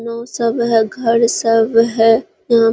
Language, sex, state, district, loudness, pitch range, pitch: Hindi, female, Bihar, Araria, -15 LUFS, 225-235 Hz, 230 Hz